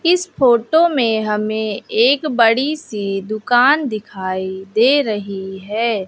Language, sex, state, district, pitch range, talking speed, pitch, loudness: Hindi, female, Bihar, West Champaran, 205-280 Hz, 120 wpm, 225 Hz, -17 LUFS